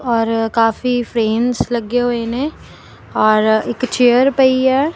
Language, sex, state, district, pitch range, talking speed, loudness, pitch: Punjabi, female, Punjab, Kapurthala, 225-255 Hz, 135 wpm, -15 LUFS, 240 Hz